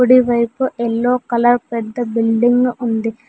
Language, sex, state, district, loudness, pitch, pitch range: Telugu, female, Telangana, Mahabubabad, -16 LUFS, 240 Hz, 230-250 Hz